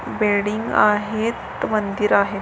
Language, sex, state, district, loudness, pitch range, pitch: Marathi, female, Maharashtra, Sindhudurg, -20 LUFS, 200-215 Hz, 210 Hz